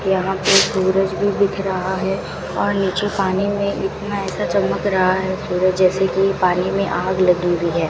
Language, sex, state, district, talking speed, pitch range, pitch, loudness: Hindi, female, Rajasthan, Bikaner, 190 wpm, 185-195 Hz, 190 Hz, -18 LUFS